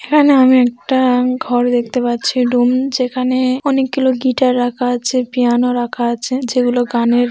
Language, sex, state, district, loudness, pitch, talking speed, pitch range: Bengali, female, West Bengal, North 24 Parganas, -15 LUFS, 250 Hz, 150 wpm, 245-255 Hz